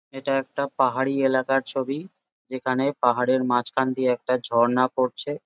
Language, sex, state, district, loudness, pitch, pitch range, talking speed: Bengali, male, West Bengal, Jalpaiguri, -24 LUFS, 130 Hz, 125-135 Hz, 145 wpm